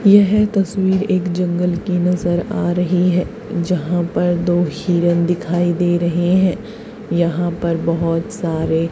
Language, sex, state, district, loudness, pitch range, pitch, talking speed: Hindi, female, Haryana, Charkhi Dadri, -17 LUFS, 175-190 Hz, 175 Hz, 140 wpm